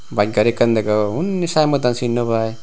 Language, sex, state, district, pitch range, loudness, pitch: Chakma, male, Tripura, Unakoti, 110-140 Hz, -18 LUFS, 120 Hz